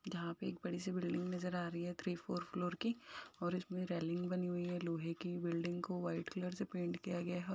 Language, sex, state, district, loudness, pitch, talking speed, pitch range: Hindi, female, Uttar Pradesh, Etah, -42 LUFS, 175 Hz, 270 wpm, 170-180 Hz